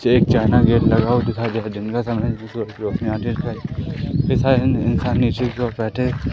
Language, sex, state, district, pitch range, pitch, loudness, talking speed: Hindi, male, Madhya Pradesh, Katni, 110-125 Hz, 120 Hz, -19 LUFS, 160 wpm